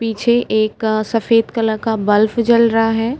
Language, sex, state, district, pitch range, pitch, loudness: Hindi, female, Uttar Pradesh, Etah, 215-230 Hz, 225 Hz, -15 LUFS